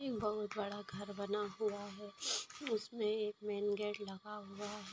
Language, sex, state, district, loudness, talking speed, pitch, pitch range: Bhojpuri, female, Bihar, Saran, -41 LUFS, 160 wpm, 210 Hz, 205-210 Hz